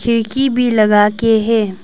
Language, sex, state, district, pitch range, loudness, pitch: Hindi, female, Arunachal Pradesh, Papum Pare, 210-235 Hz, -13 LUFS, 225 Hz